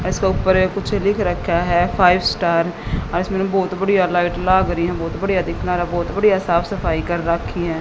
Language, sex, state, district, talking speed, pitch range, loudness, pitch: Hindi, female, Haryana, Jhajjar, 215 wpm, 175-190 Hz, -18 LUFS, 180 Hz